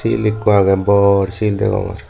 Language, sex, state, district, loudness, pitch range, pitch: Chakma, male, Tripura, Dhalai, -15 LUFS, 100-105 Hz, 100 Hz